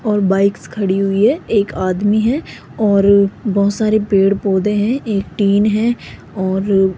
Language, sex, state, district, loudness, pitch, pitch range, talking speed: Hindi, female, Rajasthan, Jaipur, -15 LUFS, 200 Hz, 195-215 Hz, 155 wpm